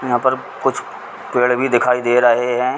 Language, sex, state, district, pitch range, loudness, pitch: Hindi, male, Uttar Pradesh, Ghazipur, 120-125 Hz, -16 LUFS, 125 Hz